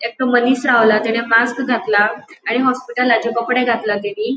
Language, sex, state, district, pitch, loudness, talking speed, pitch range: Konkani, female, Goa, North and South Goa, 235 Hz, -16 LUFS, 180 wpm, 225-250 Hz